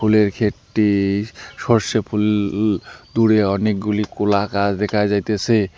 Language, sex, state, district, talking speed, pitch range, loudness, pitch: Bengali, male, West Bengal, Alipurduar, 105 wpm, 100-110 Hz, -19 LUFS, 105 Hz